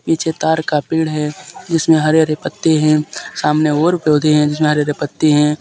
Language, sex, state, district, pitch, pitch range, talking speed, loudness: Hindi, male, Jharkhand, Deoghar, 155 Hz, 150-160 Hz, 205 wpm, -15 LUFS